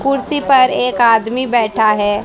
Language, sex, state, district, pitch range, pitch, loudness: Hindi, female, Haryana, Jhajjar, 220-265 Hz, 240 Hz, -13 LUFS